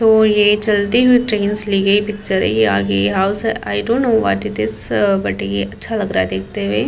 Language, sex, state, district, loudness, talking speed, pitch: Hindi, female, Uttar Pradesh, Muzaffarnagar, -16 LUFS, 255 wpm, 200 Hz